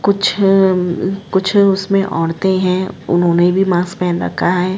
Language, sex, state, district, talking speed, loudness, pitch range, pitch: Hindi, female, Uttar Pradesh, Jalaun, 125 wpm, -15 LUFS, 180-195 Hz, 190 Hz